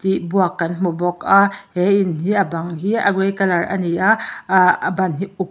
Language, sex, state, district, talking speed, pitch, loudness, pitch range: Mizo, male, Mizoram, Aizawl, 260 wpm, 190 Hz, -18 LUFS, 175-195 Hz